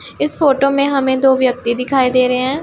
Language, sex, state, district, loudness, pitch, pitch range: Hindi, female, Punjab, Pathankot, -14 LUFS, 265 Hz, 255-275 Hz